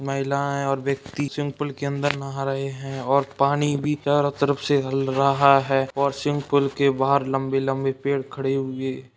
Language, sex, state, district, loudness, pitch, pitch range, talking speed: Hindi, male, Uttar Pradesh, Ghazipur, -23 LUFS, 140 Hz, 135-140 Hz, 195 wpm